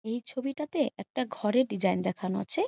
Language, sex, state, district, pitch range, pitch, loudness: Bengali, female, West Bengal, Jhargram, 195-280 Hz, 235 Hz, -30 LUFS